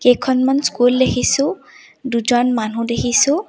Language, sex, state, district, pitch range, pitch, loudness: Assamese, female, Assam, Sonitpur, 240-275 Hz, 250 Hz, -16 LUFS